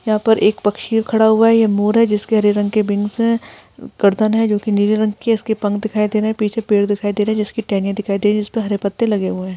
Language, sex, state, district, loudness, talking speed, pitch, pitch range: Hindi, female, Rajasthan, Churu, -16 LUFS, 300 wpm, 210 Hz, 205-220 Hz